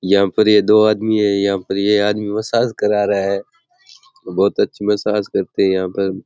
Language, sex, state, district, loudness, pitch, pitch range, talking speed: Rajasthani, male, Rajasthan, Churu, -16 LUFS, 105 Hz, 100-110 Hz, 200 wpm